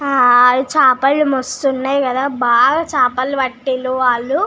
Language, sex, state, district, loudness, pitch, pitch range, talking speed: Telugu, female, Telangana, Nalgonda, -14 LUFS, 260 Hz, 255-280 Hz, 135 wpm